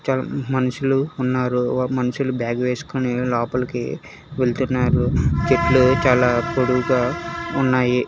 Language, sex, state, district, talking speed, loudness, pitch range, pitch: Telugu, male, Telangana, Hyderabad, 90 wpm, -20 LUFS, 125-130 Hz, 125 Hz